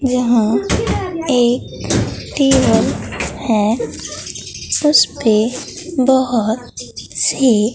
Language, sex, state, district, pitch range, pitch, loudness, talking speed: Hindi, female, Bihar, Katihar, 225-270 Hz, 250 Hz, -16 LUFS, 60 wpm